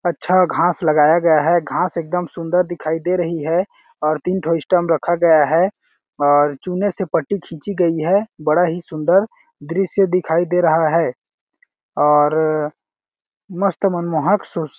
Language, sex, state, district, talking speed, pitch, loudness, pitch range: Hindi, male, Chhattisgarh, Balrampur, 155 wpm, 175 Hz, -17 LUFS, 160-185 Hz